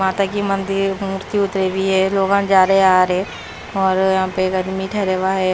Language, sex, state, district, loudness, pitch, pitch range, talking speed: Hindi, female, Punjab, Pathankot, -17 LUFS, 190 Hz, 190-195 Hz, 205 wpm